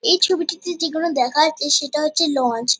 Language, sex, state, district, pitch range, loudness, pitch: Bengali, female, West Bengal, Kolkata, 290-340 Hz, -19 LUFS, 310 Hz